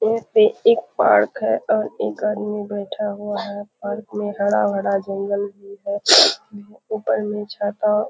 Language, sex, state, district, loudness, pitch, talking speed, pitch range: Hindi, female, Bihar, Kishanganj, -20 LUFS, 210 Hz, 155 wpm, 205-215 Hz